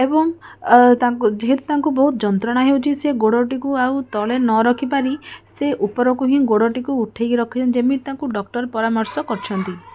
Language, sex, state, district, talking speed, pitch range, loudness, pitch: Odia, female, Odisha, Khordha, 150 wpm, 230-275 Hz, -18 LUFS, 250 Hz